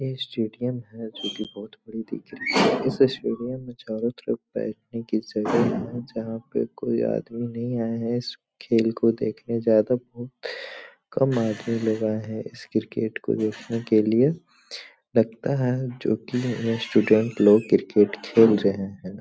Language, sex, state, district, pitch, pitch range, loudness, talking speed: Hindi, male, Bihar, Supaul, 115 Hz, 110-125 Hz, -24 LUFS, 160 wpm